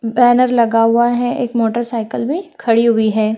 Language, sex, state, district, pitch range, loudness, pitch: Hindi, female, Haryana, Jhajjar, 225-245 Hz, -15 LUFS, 235 Hz